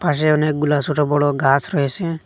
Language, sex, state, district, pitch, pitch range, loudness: Bengali, male, Assam, Hailakandi, 150 Hz, 145-155 Hz, -18 LUFS